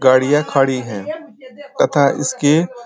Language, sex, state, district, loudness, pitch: Hindi, male, Uttar Pradesh, Ghazipur, -16 LUFS, 155 Hz